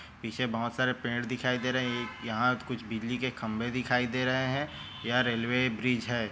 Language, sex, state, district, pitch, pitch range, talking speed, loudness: Hindi, male, Chhattisgarh, Korba, 125 Hz, 115-125 Hz, 210 wpm, -31 LUFS